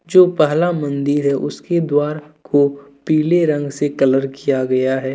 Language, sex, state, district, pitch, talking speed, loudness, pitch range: Hindi, male, Jharkhand, Deoghar, 145 Hz, 165 wpm, -17 LUFS, 140-155 Hz